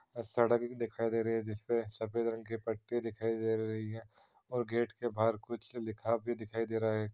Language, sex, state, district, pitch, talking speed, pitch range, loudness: Hindi, male, Bihar, East Champaran, 115 Hz, 225 wpm, 110-120 Hz, -36 LUFS